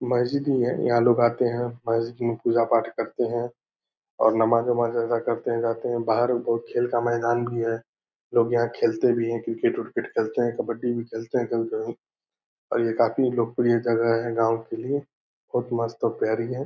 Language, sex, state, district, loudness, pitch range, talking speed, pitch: Angika, male, Bihar, Purnia, -24 LUFS, 115-120 Hz, 195 wpm, 120 Hz